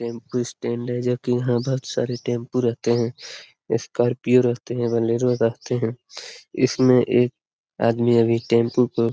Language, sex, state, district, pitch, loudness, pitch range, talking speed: Hindi, male, Bihar, Lakhisarai, 120 Hz, -22 LUFS, 115-125 Hz, 150 wpm